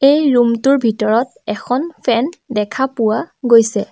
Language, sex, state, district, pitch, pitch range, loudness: Assamese, female, Assam, Sonitpur, 240 Hz, 220-270 Hz, -15 LUFS